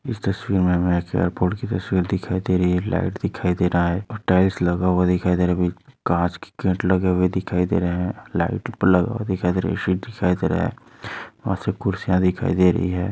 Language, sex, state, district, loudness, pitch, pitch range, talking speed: Hindi, male, Maharashtra, Aurangabad, -21 LUFS, 90 Hz, 90-95 Hz, 215 wpm